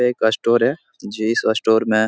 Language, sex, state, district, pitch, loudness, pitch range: Hindi, male, Bihar, Supaul, 110 Hz, -18 LUFS, 110-120 Hz